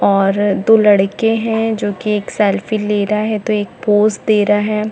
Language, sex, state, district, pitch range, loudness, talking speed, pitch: Hindi, female, Chhattisgarh, Bilaspur, 205-215 Hz, -15 LUFS, 210 wpm, 210 Hz